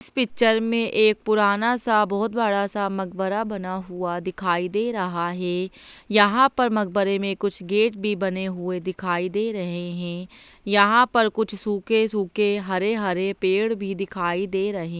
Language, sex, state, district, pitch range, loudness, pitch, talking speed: Hindi, female, Bihar, Jahanabad, 185-215 Hz, -23 LUFS, 200 Hz, 170 wpm